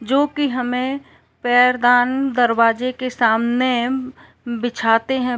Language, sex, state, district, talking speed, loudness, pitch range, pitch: Hindi, female, Uttar Pradesh, Gorakhpur, 100 wpm, -18 LUFS, 240-255 Hz, 245 Hz